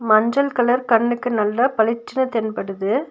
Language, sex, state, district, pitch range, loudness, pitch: Tamil, female, Tamil Nadu, Nilgiris, 220-255 Hz, -19 LUFS, 235 Hz